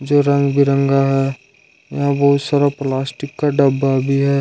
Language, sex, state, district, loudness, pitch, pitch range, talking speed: Hindi, male, Jharkhand, Ranchi, -16 LUFS, 140 Hz, 135-140 Hz, 165 wpm